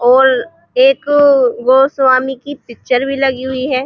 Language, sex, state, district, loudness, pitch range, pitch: Hindi, female, Uttar Pradesh, Muzaffarnagar, -12 LUFS, 255-285 Hz, 265 Hz